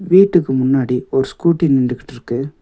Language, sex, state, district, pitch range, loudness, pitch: Tamil, male, Tamil Nadu, Nilgiris, 125-170 Hz, -16 LUFS, 135 Hz